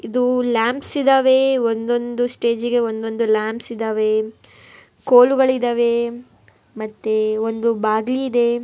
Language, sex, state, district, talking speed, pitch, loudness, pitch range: Kannada, female, Karnataka, Bellary, 85 wpm, 235 Hz, -18 LUFS, 225-245 Hz